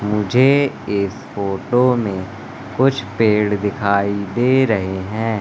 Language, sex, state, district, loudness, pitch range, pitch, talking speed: Hindi, male, Madhya Pradesh, Katni, -18 LUFS, 100-125 Hz, 105 Hz, 110 wpm